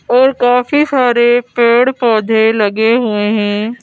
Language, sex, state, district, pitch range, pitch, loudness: Hindi, female, Madhya Pradesh, Bhopal, 220-245 Hz, 240 Hz, -12 LUFS